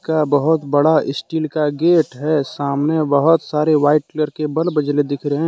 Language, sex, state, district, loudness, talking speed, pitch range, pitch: Hindi, male, Jharkhand, Deoghar, -17 LUFS, 195 wpm, 145-160 Hz, 150 Hz